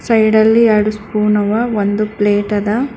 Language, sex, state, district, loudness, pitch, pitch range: Kannada, female, Karnataka, Bangalore, -14 LUFS, 215 Hz, 210-220 Hz